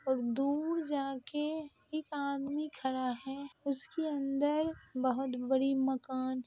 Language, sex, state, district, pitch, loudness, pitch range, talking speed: Hindi, female, Bihar, Purnia, 275 Hz, -35 LUFS, 265-295 Hz, 110 wpm